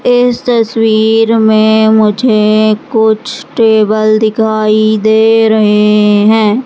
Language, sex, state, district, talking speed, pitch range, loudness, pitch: Hindi, male, Madhya Pradesh, Katni, 90 wpm, 215-225 Hz, -9 LUFS, 220 Hz